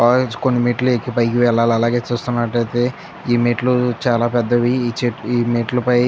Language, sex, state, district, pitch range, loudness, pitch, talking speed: Telugu, male, Andhra Pradesh, Chittoor, 120-125 Hz, -18 LUFS, 120 Hz, 140 wpm